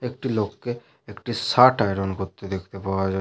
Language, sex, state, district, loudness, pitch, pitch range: Bengali, male, West Bengal, Malda, -23 LUFS, 105 Hz, 95-120 Hz